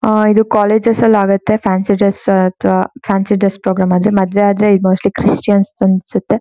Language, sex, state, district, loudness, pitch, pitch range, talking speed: Kannada, female, Karnataka, Shimoga, -13 LUFS, 200 Hz, 190-215 Hz, 160 wpm